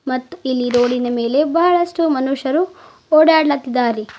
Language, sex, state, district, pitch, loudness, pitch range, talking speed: Kannada, female, Karnataka, Bidar, 280 Hz, -16 LUFS, 250-330 Hz, 100 wpm